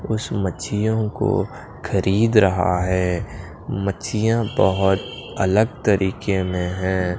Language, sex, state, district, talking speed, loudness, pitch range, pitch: Hindi, male, Punjab, Pathankot, 100 wpm, -21 LUFS, 95-110 Hz, 95 Hz